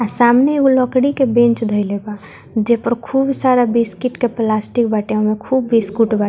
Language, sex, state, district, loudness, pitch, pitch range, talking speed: Bhojpuri, female, Bihar, Muzaffarpur, -15 LUFS, 235 Hz, 215-255 Hz, 180 wpm